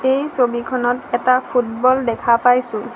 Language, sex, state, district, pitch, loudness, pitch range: Assamese, female, Assam, Sonitpur, 245 Hz, -17 LUFS, 235-255 Hz